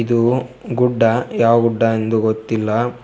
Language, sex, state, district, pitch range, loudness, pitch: Kannada, male, Karnataka, Koppal, 110-120 Hz, -17 LUFS, 115 Hz